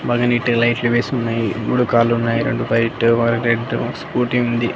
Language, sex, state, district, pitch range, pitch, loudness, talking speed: Telugu, male, Andhra Pradesh, Annamaya, 115-120 Hz, 120 Hz, -18 LUFS, 150 wpm